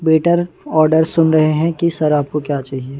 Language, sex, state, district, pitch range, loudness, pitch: Hindi, male, Madhya Pradesh, Bhopal, 150-165 Hz, -15 LUFS, 155 Hz